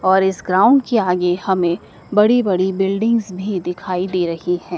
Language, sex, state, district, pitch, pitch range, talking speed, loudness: Hindi, male, Madhya Pradesh, Dhar, 190 Hz, 180-210 Hz, 175 wpm, -17 LUFS